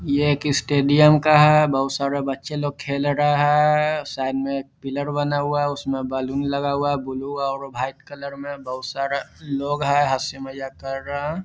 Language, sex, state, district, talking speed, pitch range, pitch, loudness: Hindi, male, Bihar, Vaishali, 200 wpm, 135-145 Hz, 140 Hz, -21 LUFS